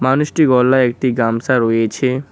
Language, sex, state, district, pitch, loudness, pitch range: Bengali, male, West Bengal, Cooch Behar, 130 Hz, -15 LUFS, 115-130 Hz